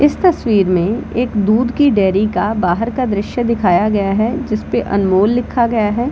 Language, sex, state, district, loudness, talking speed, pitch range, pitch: Hindi, female, Bihar, Samastipur, -15 LUFS, 185 wpm, 200-245 Hz, 215 Hz